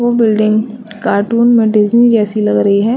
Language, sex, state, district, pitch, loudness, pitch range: Hindi, female, Chhattisgarh, Bastar, 220 Hz, -12 LUFS, 215-235 Hz